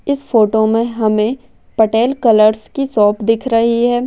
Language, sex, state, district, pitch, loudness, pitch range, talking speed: Hindi, female, Maharashtra, Aurangabad, 230 Hz, -14 LUFS, 220-245 Hz, 160 wpm